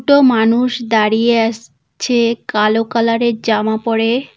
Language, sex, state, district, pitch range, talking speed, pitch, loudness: Bengali, female, West Bengal, Cooch Behar, 220-240 Hz, 125 wpm, 230 Hz, -14 LUFS